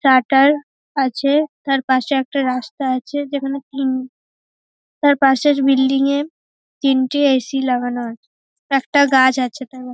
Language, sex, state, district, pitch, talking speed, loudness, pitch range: Bengali, female, West Bengal, North 24 Parganas, 270 Hz, 145 wpm, -17 LUFS, 260-280 Hz